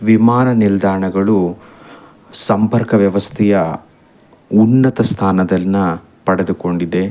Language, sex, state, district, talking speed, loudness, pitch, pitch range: Kannada, male, Karnataka, Chamarajanagar, 60 wpm, -14 LUFS, 100 Hz, 95-110 Hz